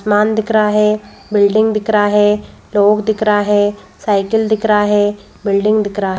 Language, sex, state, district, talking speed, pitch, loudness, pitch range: Hindi, female, Madhya Pradesh, Bhopal, 205 wpm, 210 Hz, -14 LUFS, 205-215 Hz